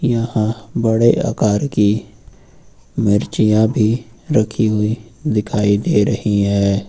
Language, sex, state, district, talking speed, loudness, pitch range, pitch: Hindi, male, Uttar Pradesh, Lucknow, 105 wpm, -17 LUFS, 105-115 Hz, 110 Hz